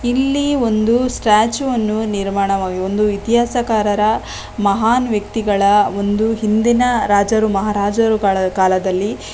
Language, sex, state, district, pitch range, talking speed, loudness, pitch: Kannada, female, Karnataka, Belgaum, 200-230 Hz, 105 wpm, -16 LUFS, 215 Hz